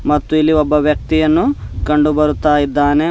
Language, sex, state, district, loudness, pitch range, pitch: Kannada, male, Karnataka, Bidar, -14 LUFS, 150-155 Hz, 150 Hz